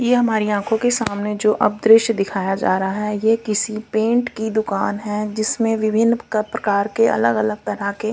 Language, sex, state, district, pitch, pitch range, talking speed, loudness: Hindi, female, Punjab, Kapurthala, 215 Hz, 205-225 Hz, 185 wpm, -19 LUFS